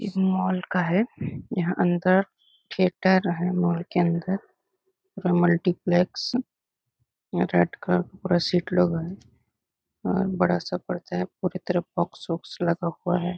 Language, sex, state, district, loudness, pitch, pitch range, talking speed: Hindi, female, Chhattisgarh, Bastar, -25 LUFS, 180 Hz, 175-185 Hz, 150 wpm